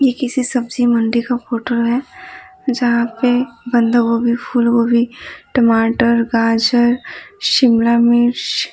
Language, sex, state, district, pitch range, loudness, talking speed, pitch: Hindi, female, Bihar, Patna, 235-245 Hz, -15 LUFS, 115 wpm, 240 Hz